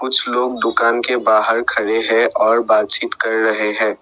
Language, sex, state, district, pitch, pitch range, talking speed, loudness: Hindi, male, Assam, Sonitpur, 115 Hz, 110-120 Hz, 180 wpm, -16 LUFS